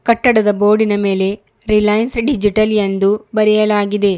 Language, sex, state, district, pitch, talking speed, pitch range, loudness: Kannada, female, Karnataka, Bidar, 210 Hz, 85 wpm, 205-220 Hz, -14 LUFS